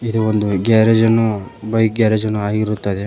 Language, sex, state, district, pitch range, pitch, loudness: Kannada, male, Karnataka, Koppal, 105-115 Hz, 110 Hz, -16 LUFS